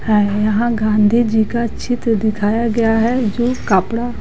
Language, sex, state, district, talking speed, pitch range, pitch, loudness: Hindi, female, Bihar, West Champaran, 155 wpm, 215-235 Hz, 225 Hz, -16 LUFS